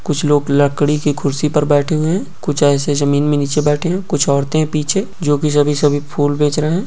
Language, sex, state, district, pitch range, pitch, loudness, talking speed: Hindi, male, Bihar, East Champaran, 145-150 Hz, 150 Hz, -15 LUFS, 270 wpm